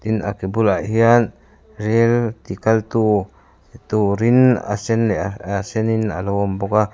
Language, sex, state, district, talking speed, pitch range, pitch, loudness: Mizo, male, Mizoram, Aizawl, 155 wpm, 100-115 Hz, 110 Hz, -18 LUFS